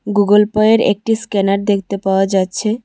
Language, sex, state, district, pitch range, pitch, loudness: Bengali, female, Tripura, West Tripura, 195-215 Hz, 205 Hz, -15 LUFS